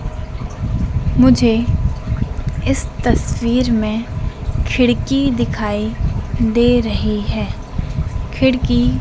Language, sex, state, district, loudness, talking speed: Hindi, female, Madhya Pradesh, Dhar, -17 LUFS, 65 wpm